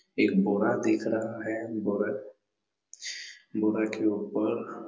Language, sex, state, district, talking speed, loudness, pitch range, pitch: Hindi, male, Chhattisgarh, Raigarh, 110 wpm, -29 LUFS, 105-110 Hz, 110 Hz